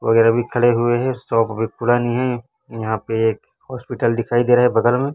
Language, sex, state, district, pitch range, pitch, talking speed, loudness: Hindi, male, Chhattisgarh, Raipur, 115-125 Hz, 120 Hz, 220 wpm, -18 LUFS